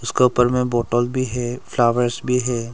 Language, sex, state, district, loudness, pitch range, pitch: Hindi, male, Arunachal Pradesh, Longding, -20 LUFS, 120-125 Hz, 120 Hz